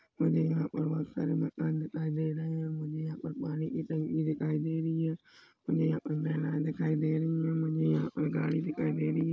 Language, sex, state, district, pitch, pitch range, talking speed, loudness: Hindi, male, Chhattisgarh, Rajnandgaon, 155 Hz, 150-160 Hz, 230 wpm, -32 LUFS